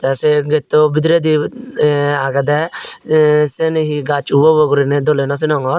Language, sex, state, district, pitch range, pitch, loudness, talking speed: Chakma, male, Tripura, Unakoti, 145-155 Hz, 150 Hz, -14 LUFS, 165 wpm